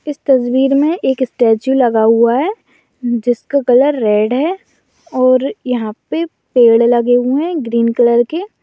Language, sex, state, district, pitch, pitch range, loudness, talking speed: Bhojpuri, female, Uttar Pradesh, Gorakhpur, 255 Hz, 235-280 Hz, -13 LUFS, 160 wpm